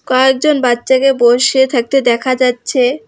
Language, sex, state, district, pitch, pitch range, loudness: Bengali, female, West Bengal, Alipurduar, 255 Hz, 245-265 Hz, -12 LUFS